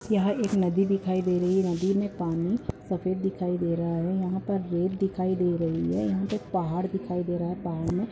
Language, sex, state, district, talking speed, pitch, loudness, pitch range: Hindi, female, Goa, North and South Goa, 235 wpm, 185 Hz, -27 LUFS, 175-195 Hz